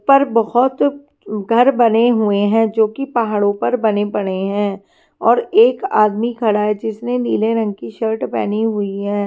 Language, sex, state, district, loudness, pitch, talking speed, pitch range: Hindi, female, Himachal Pradesh, Shimla, -16 LUFS, 220 Hz, 170 wpm, 205-240 Hz